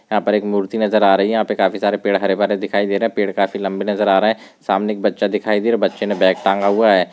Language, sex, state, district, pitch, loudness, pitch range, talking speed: Hindi, male, Rajasthan, Churu, 100 Hz, -17 LUFS, 100-105 Hz, 330 wpm